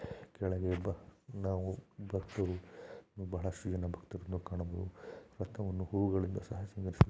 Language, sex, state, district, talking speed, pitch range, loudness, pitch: Kannada, male, Karnataka, Shimoga, 100 wpm, 90-100 Hz, -39 LUFS, 95 Hz